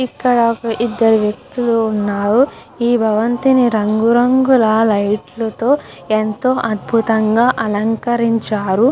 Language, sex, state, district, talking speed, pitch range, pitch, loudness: Telugu, female, Andhra Pradesh, Guntur, 95 wpm, 215-240 Hz, 225 Hz, -15 LUFS